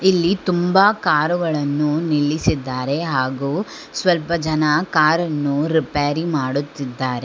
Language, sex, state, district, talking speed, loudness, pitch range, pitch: Kannada, female, Karnataka, Bangalore, 90 wpm, -19 LUFS, 145-170 Hz, 155 Hz